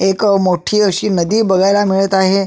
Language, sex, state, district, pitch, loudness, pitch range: Marathi, male, Maharashtra, Sindhudurg, 195 Hz, -13 LUFS, 190-205 Hz